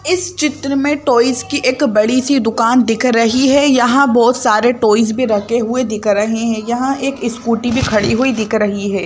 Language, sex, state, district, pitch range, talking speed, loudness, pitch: Hindi, female, Madhya Pradesh, Bhopal, 225-270 Hz, 205 wpm, -14 LUFS, 240 Hz